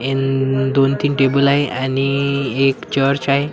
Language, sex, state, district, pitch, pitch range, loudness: Marathi, male, Maharashtra, Washim, 135 Hz, 135-140 Hz, -17 LUFS